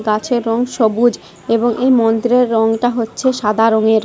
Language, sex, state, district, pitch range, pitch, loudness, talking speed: Bengali, female, West Bengal, Jhargram, 220-245 Hz, 230 Hz, -15 LUFS, 150 wpm